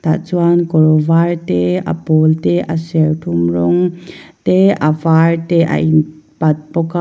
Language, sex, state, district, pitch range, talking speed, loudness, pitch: Mizo, female, Mizoram, Aizawl, 155-170 Hz, 170 wpm, -14 LUFS, 160 Hz